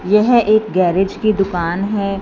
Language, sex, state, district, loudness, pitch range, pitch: Hindi, female, Punjab, Fazilka, -15 LUFS, 185-215 Hz, 195 Hz